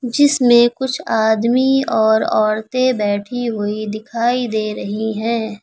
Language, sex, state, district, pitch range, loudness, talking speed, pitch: Hindi, female, Uttar Pradesh, Lucknow, 215-245 Hz, -17 LUFS, 115 wpm, 225 Hz